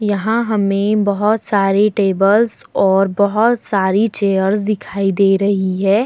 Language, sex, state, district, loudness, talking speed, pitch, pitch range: Hindi, female, Uttar Pradesh, Muzaffarnagar, -15 LUFS, 130 wpm, 200 Hz, 195-215 Hz